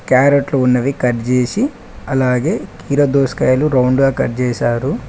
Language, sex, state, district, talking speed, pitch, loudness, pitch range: Telugu, male, Telangana, Mahabubabad, 105 wpm, 135 Hz, -15 LUFS, 125-140 Hz